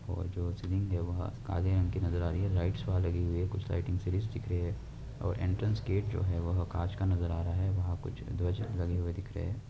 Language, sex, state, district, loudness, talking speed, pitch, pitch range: Hindi, male, West Bengal, Purulia, -34 LUFS, 215 wpm, 95 Hz, 90-100 Hz